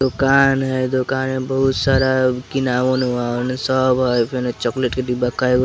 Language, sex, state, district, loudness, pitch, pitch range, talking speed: Bajjika, male, Bihar, Vaishali, -18 LUFS, 130 Hz, 125-130 Hz, 160 wpm